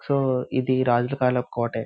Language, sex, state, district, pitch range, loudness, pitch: Telugu, male, Andhra Pradesh, Visakhapatnam, 120-130 Hz, -23 LUFS, 125 Hz